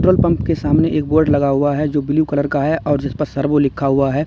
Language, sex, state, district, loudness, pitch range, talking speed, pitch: Hindi, male, Uttar Pradesh, Lalitpur, -17 LUFS, 140-150 Hz, 295 wpm, 145 Hz